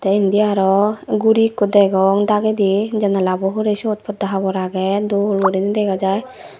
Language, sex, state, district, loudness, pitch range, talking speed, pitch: Chakma, female, Tripura, Dhalai, -17 LUFS, 195-210 Hz, 145 wpm, 200 Hz